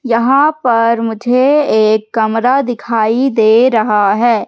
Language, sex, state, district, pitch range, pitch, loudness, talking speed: Hindi, female, Madhya Pradesh, Katni, 220-250 Hz, 230 Hz, -12 LUFS, 120 wpm